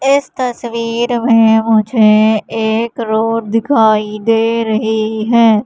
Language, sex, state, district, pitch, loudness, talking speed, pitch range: Hindi, female, Madhya Pradesh, Katni, 225 Hz, -13 LUFS, 105 wpm, 220-235 Hz